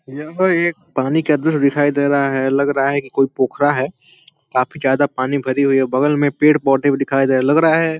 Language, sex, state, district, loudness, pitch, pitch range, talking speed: Hindi, male, Uttar Pradesh, Deoria, -16 LUFS, 140 Hz, 135-155 Hz, 260 wpm